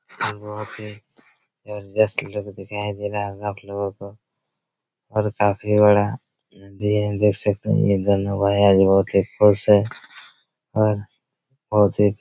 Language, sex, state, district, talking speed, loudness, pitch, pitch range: Hindi, male, Chhattisgarh, Raigarh, 145 wpm, -20 LUFS, 105 Hz, 100-105 Hz